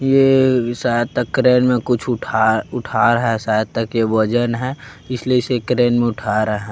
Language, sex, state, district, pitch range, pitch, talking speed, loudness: Chhattisgarhi, male, Chhattisgarh, Kabirdham, 110-125 Hz, 120 Hz, 195 wpm, -17 LUFS